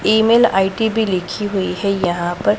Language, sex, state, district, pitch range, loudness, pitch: Hindi, female, Punjab, Pathankot, 185-220 Hz, -17 LUFS, 200 Hz